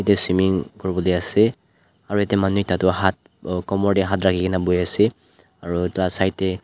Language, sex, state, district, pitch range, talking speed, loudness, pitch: Nagamese, male, Nagaland, Dimapur, 90-100 Hz, 205 wpm, -20 LUFS, 95 Hz